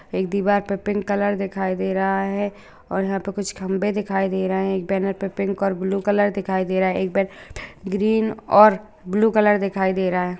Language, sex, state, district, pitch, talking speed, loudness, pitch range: Hindi, female, Bihar, Lakhisarai, 195 Hz, 225 wpm, -21 LUFS, 190-205 Hz